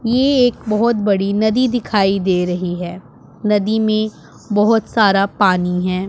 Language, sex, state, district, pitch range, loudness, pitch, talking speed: Hindi, male, Punjab, Pathankot, 185-220 Hz, -16 LUFS, 205 Hz, 145 wpm